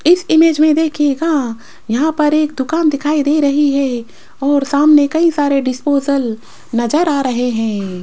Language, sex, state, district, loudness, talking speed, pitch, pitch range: Hindi, female, Rajasthan, Jaipur, -14 LUFS, 155 wpm, 285 Hz, 260-310 Hz